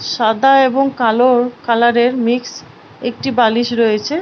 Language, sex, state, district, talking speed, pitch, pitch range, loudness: Bengali, female, West Bengal, Paschim Medinipur, 115 wpm, 240 Hz, 235-255 Hz, -14 LUFS